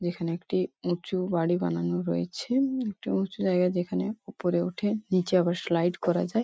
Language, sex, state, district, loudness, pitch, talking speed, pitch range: Bengali, female, West Bengal, Paschim Medinipur, -28 LUFS, 180 Hz, 160 wpm, 175-205 Hz